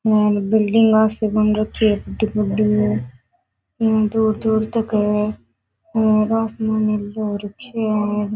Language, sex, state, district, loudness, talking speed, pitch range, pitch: Rajasthani, female, Rajasthan, Nagaur, -19 LUFS, 130 wpm, 210-220 Hz, 215 Hz